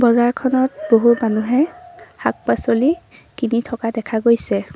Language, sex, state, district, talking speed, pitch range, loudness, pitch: Assamese, female, Assam, Sonitpur, 100 wpm, 230-270 Hz, -18 LUFS, 235 Hz